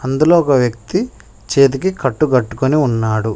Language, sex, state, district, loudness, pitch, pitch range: Telugu, male, Telangana, Mahabubabad, -15 LUFS, 135 Hz, 115-155 Hz